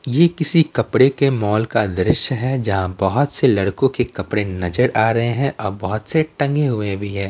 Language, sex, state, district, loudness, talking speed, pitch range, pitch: Hindi, male, Bihar, Patna, -18 LUFS, 205 wpm, 100-140 Hz, 115 Hz